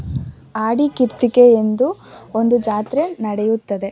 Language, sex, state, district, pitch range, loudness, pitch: Kannada, female, Karnataka, Shimoga, 215-250 Hz, -17 LUFS, 230 Hz